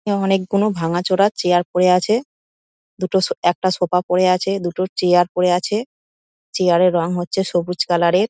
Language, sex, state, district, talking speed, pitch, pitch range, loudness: Bengali, female, West Bengal, Dakshin Dinajpur, 160 wpm, 180 Hz, 175-195 Hz, -18 LUFS